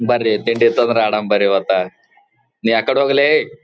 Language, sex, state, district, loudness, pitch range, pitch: Kannada, male, Karnataka, Gulbarga, -15 LUFS, 105-120 Hz, 115 Hz